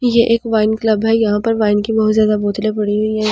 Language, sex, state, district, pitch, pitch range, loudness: Hindi, female, Delhi, New Delhi, 215 Hz, 210-225 Hz, -15 LUFS